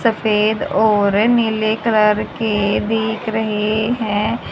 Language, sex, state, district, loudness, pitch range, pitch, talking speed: Hindi, female, Haryana, Charkhi Dadri, -17 LUFS, 210-225 Hz, 220 Hz, 105 wpm